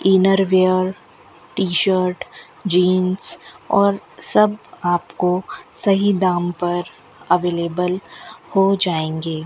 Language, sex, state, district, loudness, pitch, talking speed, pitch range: Hindi, female, Rajasthan, Bikaner, -18 LUFS, 185 Hz, 80 wpm, 175-195 Hz